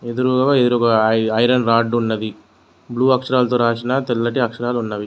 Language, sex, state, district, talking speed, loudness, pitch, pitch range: Telugu, male, Telangana, Mahabubabad, 105 wpm, -17 LUFS, 120 Hz, 110-125 Hz